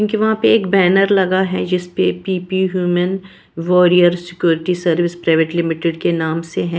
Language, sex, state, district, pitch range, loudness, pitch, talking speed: Hindi, female, Maharashtra, Washim, 170-190 Hz, -16 LUFS, 180 Hz, 175 wpm